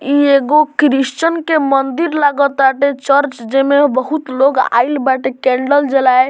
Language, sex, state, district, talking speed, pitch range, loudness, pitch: Bhojpuri, male, Bihar, Muzaffarpur, 160 wpm, 265-290 Hz, -13 LUFS, 275 Hz